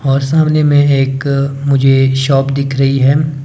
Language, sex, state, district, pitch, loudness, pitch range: Hindi, male, Himachal Pradesh, Shimla, 140 Hz, -12 LUFS, 135-140 Hz